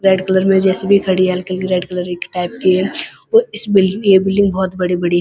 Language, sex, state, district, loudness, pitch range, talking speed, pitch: Hindi, male, Uttarakhand, Uttarkashi, -15 LUFS, 185-195 Hz, 255 wpm, 190 Hz